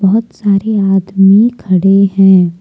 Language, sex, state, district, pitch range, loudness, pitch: Hindi, female, Jharkhand, Deoghar, 190-205 Hz, -10 LUFS, 195 Hz